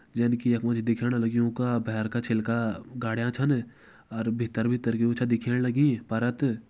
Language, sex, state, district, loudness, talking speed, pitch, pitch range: Hindi, male, Uttarakhand, Uttarkashi, -27 LUFS, 180 wpm, 120 Hz, 115-120 Hz